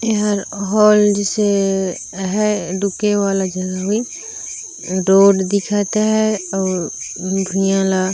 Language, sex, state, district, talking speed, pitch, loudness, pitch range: Chhattisgarhi, female, Chhattisgarh, Raigarh, 105 wpm, 200 Hz, -17 LUFS, 190-210 Hz